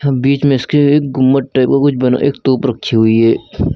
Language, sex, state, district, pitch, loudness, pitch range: Hindi, male, Uttar Pradesh, Lucknow, 135 Hz, -13 LUFS, 125-140 Hz